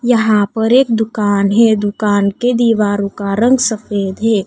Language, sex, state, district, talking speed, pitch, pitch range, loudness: Hindi, female, Odisha, Nuapada, 160 wpm, 215 Hz, 205-230 Hz, -14 LUFS